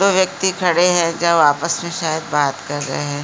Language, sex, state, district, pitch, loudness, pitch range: Hindi, female, Uttarakhand, Uttarkashi, 170 Hz, -17 LUFS, 145-180 Hz